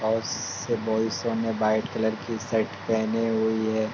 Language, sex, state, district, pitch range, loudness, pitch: Hindi, male, Uttar Pradesh, Ghazipur, 110-115 Hz, -26 LUFS, 110 Hz